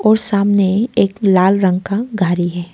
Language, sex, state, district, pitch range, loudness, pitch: Hindi, female, Arunachal Pradesh, Lower Dibang Valley, 185-210 Hz, -15 LUFS, 195 Hz